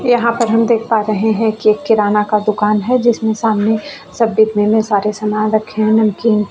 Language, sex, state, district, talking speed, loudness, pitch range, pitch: Hindi, female, Chhattisgarh, Bastar, 210 wpm, -14 LUFS, 210-225 Hz, 220 Hz